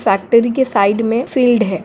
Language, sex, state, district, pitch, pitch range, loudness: Hindi, female, Jharkhand, Jamtara, 230 Hz, 200-245 Hz, -14 LUFS